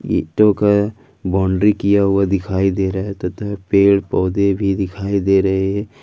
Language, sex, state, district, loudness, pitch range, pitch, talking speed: Hindi, male, Jharkhand, Ranchi, -17 LUFS, 95-100 Hz, 100 Hz, 170 wpm